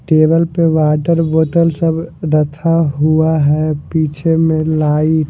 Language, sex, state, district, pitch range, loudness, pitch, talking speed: Hindi, male, Punjab, Fazilka, 155-165 Hz, -14 LUFS, 160 Hz, 135 wpm